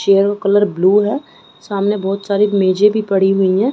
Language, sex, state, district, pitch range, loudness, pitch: Hindi, female, Chhattisgarh, Rajnandgaon, 195-210 Hz, -15 LUFS, 200 Hz